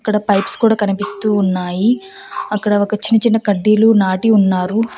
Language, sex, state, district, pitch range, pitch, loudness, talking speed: Telugu, female, Andhra Pradesh, Annamaya, 200-225 Hz, 210 Hz, -15 LUFS, 145 wpm